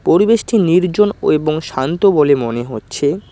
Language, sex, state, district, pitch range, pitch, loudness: Bengali, male, West Bengal, Cooch Behar, 145-210 Hz, 165 Hz, -15 LUFS